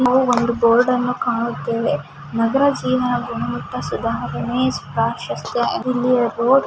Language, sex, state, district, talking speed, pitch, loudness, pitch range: Kannada, female, Karnataka, Mysore, 65 wpm, 245 Hz, -19 LUFS, 235-255 Hz